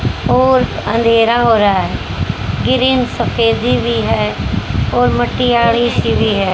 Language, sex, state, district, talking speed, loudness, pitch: Hindi, female, Haryana, Rohtak, 130 wpm, -14 LUFS, 185 Hz